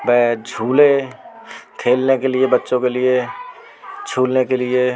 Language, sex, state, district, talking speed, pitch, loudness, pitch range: Hindi, male, Delhi, New Delhi, 120 wpm, 130 Hz, -17 LUFS, 125-135 Hz